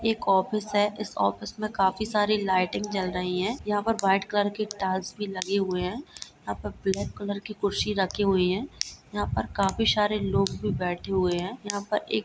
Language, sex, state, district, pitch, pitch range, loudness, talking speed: Hindi, female, Bihar, Gopalganj, 195 Hz, 185-210 Hz, -27 LUFS, 215 wpm